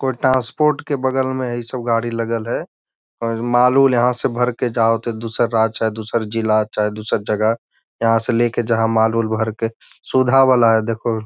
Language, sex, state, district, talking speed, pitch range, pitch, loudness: Magahi, male, Bihar, Gaya, 190 wpm, 115-125 Hz, 115 Hz, -18 LUFS